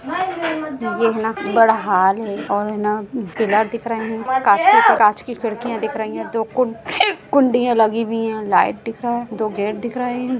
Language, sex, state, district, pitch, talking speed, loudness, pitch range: Hindi, female, Bihar, Gaya, 230 Hz, 195 wpm, -18 LUFS, 220-250 Hz